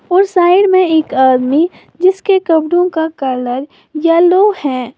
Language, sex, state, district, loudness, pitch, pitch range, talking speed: Hindi, female, Uttar Pradesh, Lalitpur, -12 LUFS, 330 Hz, 275-370 Hz, 130 wpm